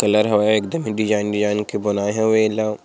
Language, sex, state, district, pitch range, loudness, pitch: Chhattisgarhi, male, Chhattisgarh, Sarguja, 105-110 Hz, -19 LUFS, 105 Hz